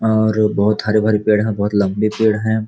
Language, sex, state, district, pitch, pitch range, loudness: Hindi, male, Chhattisgarh, Rajnandgaon, 110 Hz, 105-110 Hz, -16 LUFS